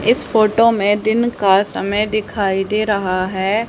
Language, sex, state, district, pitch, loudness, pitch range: Hindi, male, Haryana, Charkhi Dadri, 210 Hz, -16 LUFS, 195-220 Hz